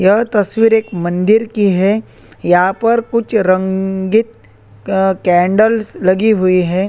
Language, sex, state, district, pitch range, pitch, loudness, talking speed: Hindi, male, Chhattisgarh, Korba, 185-220 Hz, 195 Hz, -14 LUFS, 120 wpm